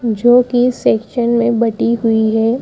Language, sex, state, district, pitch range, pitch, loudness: Hindi, female, Madhya Pradesh, Bhopal, 225-245 Hz, 235 Hz, -14 LUFS